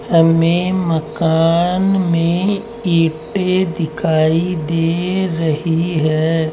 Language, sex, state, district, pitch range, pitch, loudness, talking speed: Hindi, male, Rajasthan, Jaipur, 160-185 Hz, 165 Hz, -16 LUFS, 75 wpm